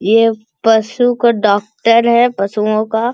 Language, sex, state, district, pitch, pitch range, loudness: Hindi, male, Bihar, Bhagalpur, 225 Hz, 215-235 Hz, -13 LUFS